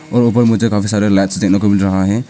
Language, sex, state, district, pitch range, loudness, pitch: Hindi, male, Arunachal Pradesh, Papum Pare, 100-115 Hz, -13 LUFS, 105 Hz